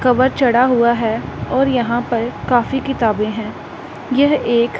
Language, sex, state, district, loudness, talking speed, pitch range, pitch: Hindi, female, Punjab, Pathankot, -16 LUFS, 150 wpm, 235-260 Hz, 245 Hz